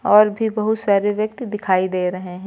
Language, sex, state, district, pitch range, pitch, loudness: Hindi, female, Uttar Pradesh, Lucknow, 185-215 Hz, 210 Hz, -19 LUFS